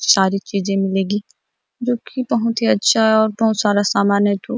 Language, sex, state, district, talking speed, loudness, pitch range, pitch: Hindi, female, Chhattisgarh, Bastar, 185 wpm, -17 LUFS, 195-230 Hz, 205 Hz